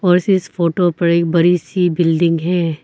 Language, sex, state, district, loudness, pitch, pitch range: Hindi, female, Arunachal Pradesh, Papum Pare, -15 LUFS, 175 Hz, 170-180 Hz